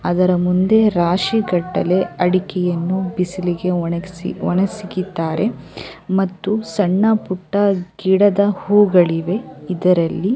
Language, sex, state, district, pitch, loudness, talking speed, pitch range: Kannada, female, Karnataka, Chamarajanagar, 185 Hz, -18 LUFS, 80 wpm, 180-200 Hz